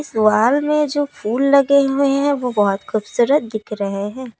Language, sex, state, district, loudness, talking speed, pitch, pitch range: Hindi, female, Assam, Kamrup Metropolitan, -17 LUFS, 175 wpm, 250 Hz, 215-280 Hz